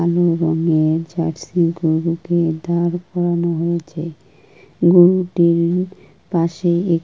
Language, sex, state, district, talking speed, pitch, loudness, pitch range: Bengali, female, West Bengal, Kolkata, 85 wpm, 170 Hz, -17 LUFS, 165-175 Hz